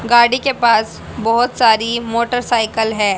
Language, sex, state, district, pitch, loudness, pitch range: Hindi, female, Haryana, Charkhi Dadri, 230 Hz, -15 LUFS, 220-240 Hz